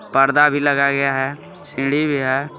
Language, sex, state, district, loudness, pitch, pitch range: Hindi, male, Jharkhand, Garhwa, -17 LUFS, 140 Hz, 135-145 Hz